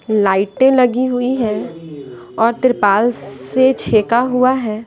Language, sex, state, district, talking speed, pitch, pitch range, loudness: Hindi, female, Bihar, West Champaran, 125 wpm, 230 Hz, 205-255 Hz, -15 LUFS